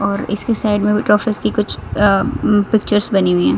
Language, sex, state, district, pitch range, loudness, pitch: Hindi, female, Haryana, Rohtak, 200-210 Hz, -16 LUFS, 210 Hz